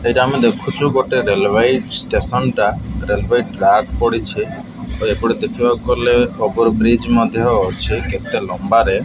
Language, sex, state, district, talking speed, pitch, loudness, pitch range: Odia, male, Odisha, Malkangiri, 135 wpm, 120 Hz, -16 LUFS, 115-120 Hz